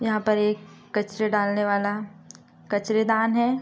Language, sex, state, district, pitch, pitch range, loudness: Hindi, female, Uttar Pradesh, Gorakhpur, 210 Hz, 205-220 Hz, -24 LUFS